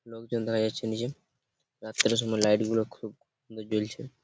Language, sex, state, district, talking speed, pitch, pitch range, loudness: Bengali, male, West Bengal, Purulia, 155 wpm, 110 Hz, 110-115 Hz, -29 LUFS